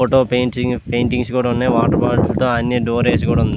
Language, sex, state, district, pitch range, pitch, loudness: Telugu, male, Andhra Pradesh, Visakhapatnam, 120-125 Hz, 125 Hz, -17 LUFS